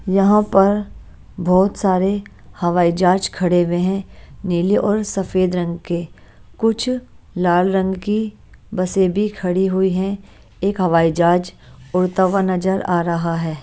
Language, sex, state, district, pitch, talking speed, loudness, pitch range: Hindi, female, Haryana, Jhajjar, 185 Hz, 140 wpm, -18 LUFS, 175-195 Hz